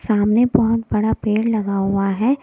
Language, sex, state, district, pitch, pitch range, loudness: Hindi, female, Delhi, New Delhi, 215 Hz, 205-230 Hz, -18 LUFS